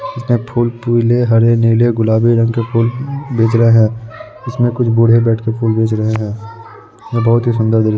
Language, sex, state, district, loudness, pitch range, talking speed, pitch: Hindi, male, Uttar Pradesh, Muzaffarnagar, -13 LUFS, 115-120 Hz, 190 wpm, 115 Hz